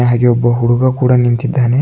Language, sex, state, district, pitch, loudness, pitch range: Kannada, male, Karnataka, Bidar, 125 Hz, -12 LUFS, 120-130 Hz